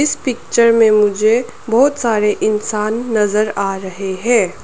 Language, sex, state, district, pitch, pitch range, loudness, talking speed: Hindi, female, Arunachal Pradesh, Lower Dibang Valley, 215 Hz, 210-235 Hz, -15 LUFS, 140 wpm